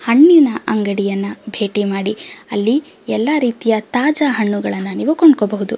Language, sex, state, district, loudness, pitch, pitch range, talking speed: Kannada, female, Karnataka, Shimoga, -15 LUFS, 220 Hz, 205-285 Hz, 125 wpm